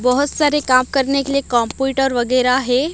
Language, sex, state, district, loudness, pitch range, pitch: Hindi, female, Odisha, Malkangiri, -17 LUFS, 250-275 Hz, 270 Hz